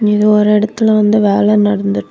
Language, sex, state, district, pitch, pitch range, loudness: Tamil, female, Tamil Nadu, Kanyakumari, 210 Hz, 205-215 Hz, -12 LUFS